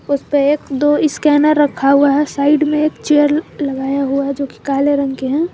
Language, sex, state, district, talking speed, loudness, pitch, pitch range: Hindi, female, Jharkhand, Garhwa, 205 wpm, -15 LUFS, 285 Hz, 275-295 Hz